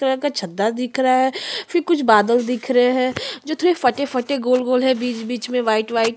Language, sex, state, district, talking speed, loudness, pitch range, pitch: Hindi, female, Chhattisgarh, Sukma, 250 wpm, -19 LUFS, 240-270 Hz, 250 Hz